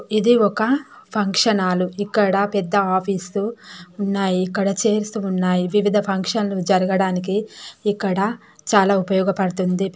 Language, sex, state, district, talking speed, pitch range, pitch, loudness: Telugu, female, Telangana, Nalgonda, 110 wpm, 190-210 Hz, 200 Hz, -20 LUFS